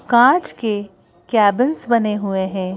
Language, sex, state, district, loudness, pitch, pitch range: Hindi, female, Madhya Pradesh, Bhopal, -17 LUFS, 210 Hz, 190-245 Hz